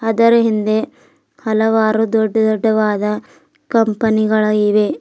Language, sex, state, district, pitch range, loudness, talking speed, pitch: Kannada, female, Karnataka, Bidar, 215-225 Hz, -15 LUFS, 95 wpm, 220 Hz